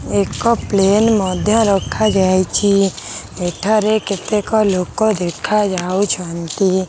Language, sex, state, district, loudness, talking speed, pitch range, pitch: Odia, female, Odisha, Khordha, -16 LUFS, 80 wpm, 185-210 Hz, 195 Hz